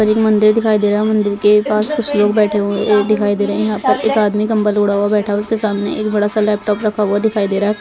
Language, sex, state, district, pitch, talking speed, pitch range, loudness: Hindi, female, Chhattisgarh, Bastar, 210 Hz, 290 wpm, 205-215 Hz, -15 LUFS